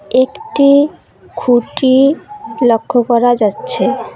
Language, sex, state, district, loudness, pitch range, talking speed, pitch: Bengali, female, West Bengal, Cooch Behar, -13 LUFS, 240-280 Hz, 70 wpm, 255 Hz